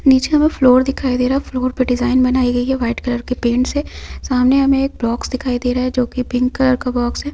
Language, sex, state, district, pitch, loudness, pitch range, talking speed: Hindi, female, Chhattisgarh, Raigarh, 255 Hz, -16 LUFS, 250-265 Hz, 270 wpm